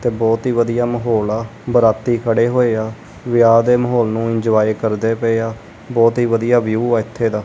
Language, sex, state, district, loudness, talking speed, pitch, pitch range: Punjabi, male, Punjab, Kapurthala, -16 LUFS, 200 wpm, 115 Hz, 110-120 Hz